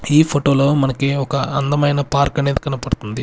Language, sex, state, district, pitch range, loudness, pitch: Telugu, male, Andhra Pradesh, Sri Satya Sai, 135-145 Hz, -17 LUFS, 140 Hz